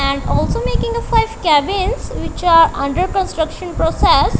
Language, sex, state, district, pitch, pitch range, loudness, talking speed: English, female, Punjab, Kapurthala, 360 Hz, 305-390 Hz, -16 LUFS, 150 wpm